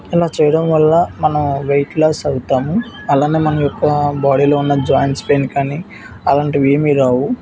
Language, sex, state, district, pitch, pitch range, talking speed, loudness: Telugu, male, Andhra Pradesh, Visakhapatnam, 145 Hz, 140-155 Hz, 135 wpm, -15 LUFS